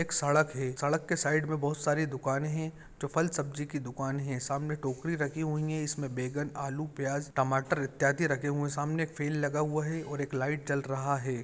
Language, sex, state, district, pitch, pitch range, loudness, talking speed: Hindi, male, Chhattisgarh, Kabirdham, 145 Hz, 140-155 Hz, -32 LUFS, 215 wpm